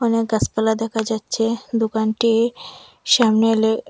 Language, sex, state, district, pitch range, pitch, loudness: Bengali, female, Assam, Hailakandi, 220-230 Hz, 225 Hz, -19 LUFS